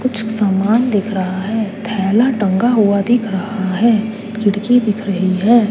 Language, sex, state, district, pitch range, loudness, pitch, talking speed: Hindi, female, Chandigarh, Chandigarh, 200-225 Hz, -15 LUFS, 215 Hz, 160 wpm